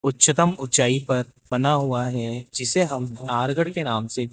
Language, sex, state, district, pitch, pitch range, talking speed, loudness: Hindi, male, Rajasthan, Jaipur, 125 Hz, 125-140 Hz, 165 wpm, -22 LUFS